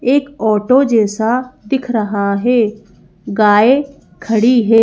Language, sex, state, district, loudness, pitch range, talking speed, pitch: Hindi, female, Madhya Pradesh, Bhopal, -14 LUFS, 215-255 Hz, 110 wpm, 225 Hz